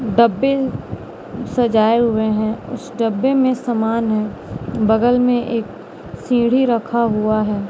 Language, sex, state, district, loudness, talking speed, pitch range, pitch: Hindi, female, Bihar, West Champaran, -17 LUFS, 125 wpm, 220-245 Hz, 230 Hz